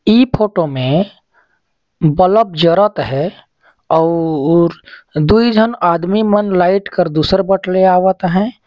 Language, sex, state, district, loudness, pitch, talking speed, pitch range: Chhattisgarhi, male, Chhattisgarh, Jashpur, -13 LUFS, 185 Hz, 125 wpm, 165-205 Hz